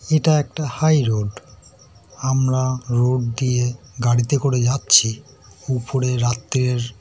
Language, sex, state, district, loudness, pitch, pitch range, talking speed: Bengali, male, West Bengal, North 24 Parganas, -19 LUFS, 125 Hz, 120-135 Hz, 105 wpm